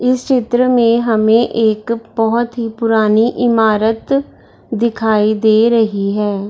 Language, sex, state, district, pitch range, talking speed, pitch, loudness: Hindi, female, Bihar, Darbhanga, 220-235 Hz, 120 wpm, 225 Hz, -14 LUFS